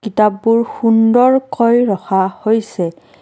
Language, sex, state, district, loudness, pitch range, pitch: Assamese, female, Assam, Kamrup Metropolitan, -14 LUFS, 200-235 Hz, 225 Hz